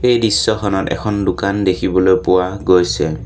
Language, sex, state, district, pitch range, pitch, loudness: Assamese, male, Assam, Sonitpur, 90-105 Hz, 95 Hz, -15 LUFS